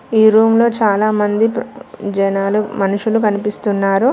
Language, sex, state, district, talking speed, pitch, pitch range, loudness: Telugu, female, Telangana, Mahabubabad, 100 wpm, 210 Hz, 200-225 Hz, -15 LUFS